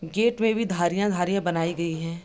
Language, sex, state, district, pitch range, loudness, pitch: Hindi, female, Bihar, East Champaran, 170-205 Hz, -25 LUFS, 175 Hz